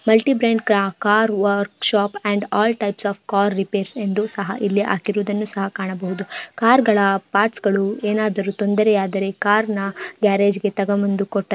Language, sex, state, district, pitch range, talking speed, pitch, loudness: Kannada, female, Karnataka, Dharwad, 200-210 Hz, 155 wpm, 205 Hz, -19 LUFS